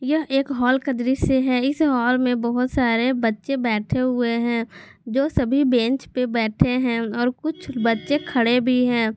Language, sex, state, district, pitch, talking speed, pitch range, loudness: Hindi, female, Jharkhand, Garhwa, 250 Hz, 175 wpm, 235-265 Hz, -21 LUFS